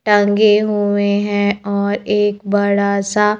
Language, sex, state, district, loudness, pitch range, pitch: Hindi, female, Madhya Pradesh, Bhopal, -15 LUFS, 200-210 Hz, 205 Hz